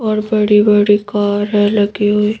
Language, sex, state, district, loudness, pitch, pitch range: Hindi, female, Madhya Pradesh, Bhopal, -13 LUFS, 210 Hz, 205-210 Hz